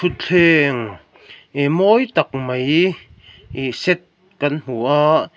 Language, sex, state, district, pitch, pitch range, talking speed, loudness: Mizo, male, Mizoram, Aizawl, 145 Hz, 125-175 Hz, 110 wpm, -17 LUFS